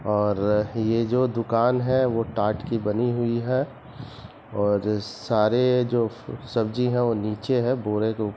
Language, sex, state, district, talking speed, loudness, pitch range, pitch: Hindi, male, Chhattisgarh, Rajnandgaon, 170 wpm, -24 LUFS, 105-125 Hz, 115 Hz